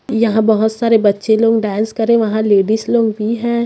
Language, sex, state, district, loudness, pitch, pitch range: Hindi, female, Chhattisgarh, Raipur, -14 LUFS, 220 Hz, 215-230 Hz